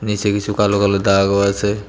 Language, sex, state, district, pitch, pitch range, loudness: Bengali, male, Tripura, West Tripura, 100 Hz, 100-105 Hz, -16 LUFS